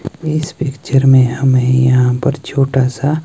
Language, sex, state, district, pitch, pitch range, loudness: Hindi, male, Himachal Pradesh, Shimla, 135 Hz, 130-145 Hz, -13 LUFS